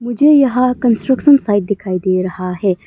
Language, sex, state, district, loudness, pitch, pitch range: Hindi, female, Arunachal Pradesh, Longding, -14 LUFS, 220 Hz, 185-260 Hz